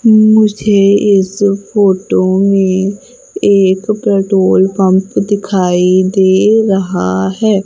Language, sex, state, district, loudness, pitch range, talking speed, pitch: Hindi, female, Madhya Pradesh, Umaria, -11 LUFS, 190-205 Hz, 85 wpm, 195 Hz